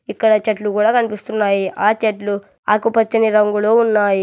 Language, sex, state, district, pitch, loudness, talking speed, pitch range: Telugu, male, Telangana, Hyderabad, 215 Hz, -16 LUFS, 130 wpm, 205-220 Hz